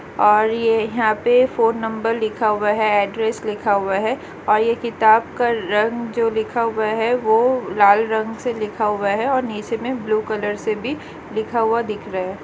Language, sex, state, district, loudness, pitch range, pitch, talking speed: Hindi, female, Chhattisgarh, Korba, -19 LUFS, 215-230 Hz, 220 Hz, 200 wpm